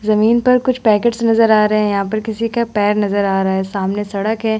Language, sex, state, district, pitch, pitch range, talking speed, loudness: Hindi, female, Bihar, Vaishali, 215 Hz, 205-225 Hz, 260 wpm, -15 LUFS